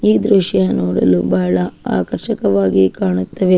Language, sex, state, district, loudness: Kannada, female, Karnataka, Shimoga, -15 LUFS